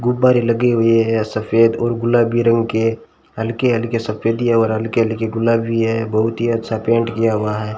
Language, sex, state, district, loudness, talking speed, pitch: Hindi, male, Rajasthan, Bikaner, -17 LUFS, 185 wpm, 115 Hz